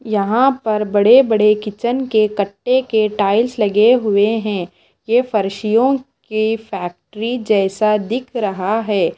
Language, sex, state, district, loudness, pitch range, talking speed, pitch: Hindi, female, Bihar, Kaimur, -16 LUFS, 205-235 Hz, 130 wpm, 215 Hz